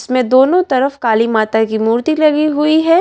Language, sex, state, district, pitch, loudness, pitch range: Hindi, female, Delhi, New Delhi, 260 Hz, -13 LUFS, 225-305 Hz